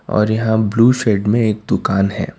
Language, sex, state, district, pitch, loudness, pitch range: Hindi, male, Karnataka, Bangalore, 110 Hz, -16 LUFS, 105-115 Hz